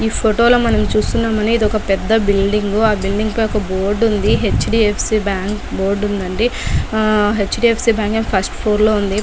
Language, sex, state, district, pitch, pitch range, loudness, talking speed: Telugu, female, Telangana, Nalgonda, 215 Hz, 205-225 Hz, -16 LUFS, 155 wpm